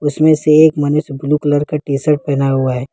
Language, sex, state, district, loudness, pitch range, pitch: Hindi, male, Jharkhand, Ranchi, -14 LUFS, 140-150 Hz, 145 Hz